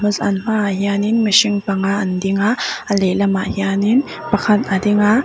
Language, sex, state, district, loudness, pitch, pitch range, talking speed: Mizo, female, Mizoram, Aizawl, -17 LUFS, 200 Hz, 195-210 Hz, 185 wpm